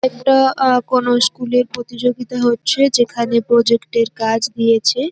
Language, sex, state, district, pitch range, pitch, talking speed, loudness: Bengali, female, West Bengal, North 24 Parganas, 235-255 Hz, 245 Hz, 105 wpm, -16 LUFS